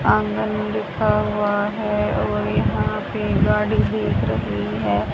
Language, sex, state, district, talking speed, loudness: Hindi, male, Haryana, Rohtak, 130 wpm, -21 LUFS